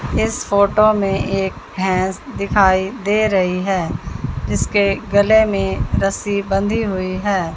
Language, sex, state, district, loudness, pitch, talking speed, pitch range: Hindi, female, Haryana, Jhajjar, -17 LUFS, 195 Hz, 125 wpm, 180-205 Hz